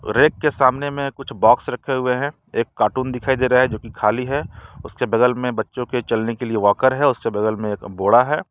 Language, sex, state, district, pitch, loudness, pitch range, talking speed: Hindi, male, Jharkhand, Ranchi, 125 Hz, -19 LUFS, 115-135 Hz, 245 wpm